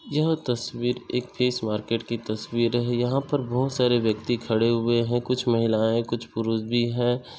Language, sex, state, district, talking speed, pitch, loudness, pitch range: Hindi, male, Chhattisgarh, Bastar, 180 wpm, 120 Hz, -25 LUFS, 115-125 Hz